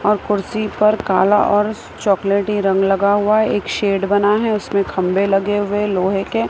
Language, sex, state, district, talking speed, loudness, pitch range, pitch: Hindi, female, Maharashtra, Mumbai Suburban, 195 wpm, -17 LUFS, 195-210 Hz, 205 Hz